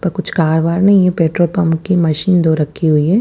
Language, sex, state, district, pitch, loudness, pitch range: Hindi, female, Punjab, Fazilka, 170 Hz, -13 LUFS, 160-185 Hz